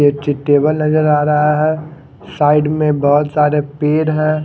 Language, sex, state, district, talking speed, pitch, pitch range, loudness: Hindi, male, Odisha, Khordha, 175 wpm, 150 Hz, 145-155 Hz, -14 LUFS